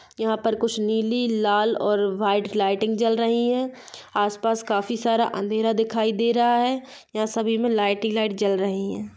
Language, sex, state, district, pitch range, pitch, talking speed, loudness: Hindi, female, Bihar, East Champaran, 205-230 Hz, 220 Hz, 185 wpm, -23 LUFS